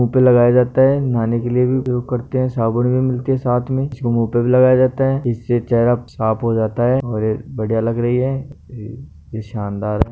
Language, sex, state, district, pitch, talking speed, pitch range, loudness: Hindi, male, Rajasthan, Nagaur, 120 Hz, 230 wpm, 115-130 Hz, -17 LUFS